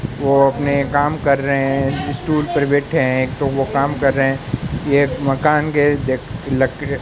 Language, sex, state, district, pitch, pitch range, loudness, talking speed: Hindi, male, Rajasthan, Bikaner, 140 Hz, 135-145 Hz, -17 LUFS, 170 wpm